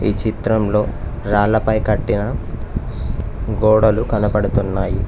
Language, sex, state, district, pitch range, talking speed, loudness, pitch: Telugu, male, Telangana, Mahabubabad, 100-110 Hz, 70 wpm, -18 LUFS, 105 Hz